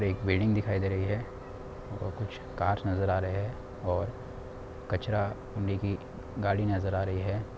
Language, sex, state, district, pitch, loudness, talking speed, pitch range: Hindi, male, Bihar, Samastipur, 100 Hz, -31 LUFS, 175 wpm, 95-120 Hz